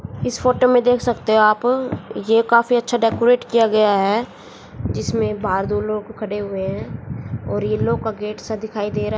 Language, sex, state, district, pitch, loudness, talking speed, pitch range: Hindi, female, Haryana, Jhajjar, 215 Hz, -19 LUFS, 190 wpm, 195-235 Hz